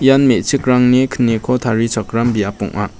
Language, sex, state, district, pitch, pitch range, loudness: Garo, male, Meghalaya, West Garo Hills, 125 Hz, 115-130 Hz, -15 LUFS